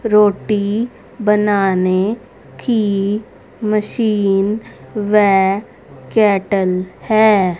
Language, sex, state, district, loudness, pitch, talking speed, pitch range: Hindi, female, Haryana, Rohtak, -16 LUFS, 210 Hz, 55 wpm, 195-215 Hz